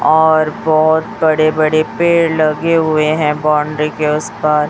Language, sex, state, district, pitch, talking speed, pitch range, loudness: Hindi, male, Chhattisgarh, Raipur, 155 Hz, 155 wpm, 150-160 Hz, -13 LUFS